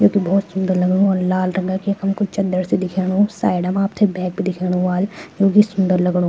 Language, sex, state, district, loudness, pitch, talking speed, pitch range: Garhwali, female, Uttarakhand, Tehri Garhwal, -18 LUFS, 190 Hz, 220 wpm, 180-195 Hz